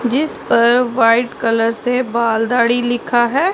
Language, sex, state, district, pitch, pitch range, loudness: Hindi, female, Punjab, Pathankot, 240 Hz, 230-245 Hz, -15 LUFS